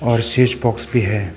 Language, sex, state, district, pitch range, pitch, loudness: Hindi, male, Arunachal Pradesh, Papum Pare, 115-120 Hz, 120 Hz, -16 LUFS